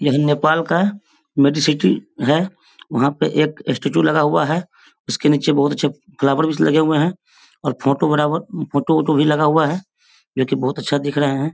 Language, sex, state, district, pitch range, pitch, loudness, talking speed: Hindi, male, Bihar, Sitamarhi, 145-160 Hz, 150 Hz, -18 LUFS, 210 wpm